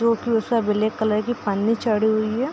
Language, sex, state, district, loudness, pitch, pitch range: Hindi, female, Bihar, East Champaran, -21 LUFS, 220 Hz, 215-230 Hz